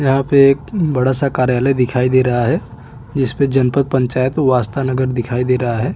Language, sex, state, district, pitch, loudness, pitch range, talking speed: Hindi, male, Chhattisgarh, Bastar, 130 Hz, -15 LUFS, 125-135 Hz, 210 wpm